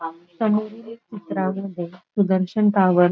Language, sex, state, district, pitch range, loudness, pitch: Marathi, female, Maharashtra, Dhule, 180-215 Hz, -22 LUFS, 195 Hz